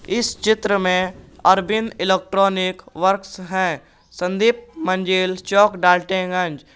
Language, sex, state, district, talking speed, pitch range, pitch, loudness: Hindi, male, Jharkhand, Garhwa, 115 wpm, 185-200 Hz, 185 Hz, -19 LUFS